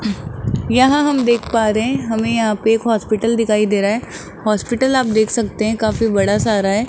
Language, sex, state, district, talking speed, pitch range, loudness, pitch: Hindi, male, Rajasthan, Jaipur, 210 wpm, 210-235 Hz, -16 LUFS, 220 Hz